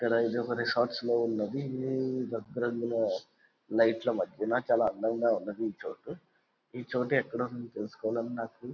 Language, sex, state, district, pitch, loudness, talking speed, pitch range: Telugu, male, Andhra Pradesh, Visakhapatnam, 120 Hz, -31 LUFS, 95 wpm, 115-125 Hz